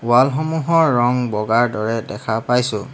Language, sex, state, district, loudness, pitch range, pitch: Assamese, male, Assam, Hailakandi, -18 LUFS, 110-125 Hz, 120 Hz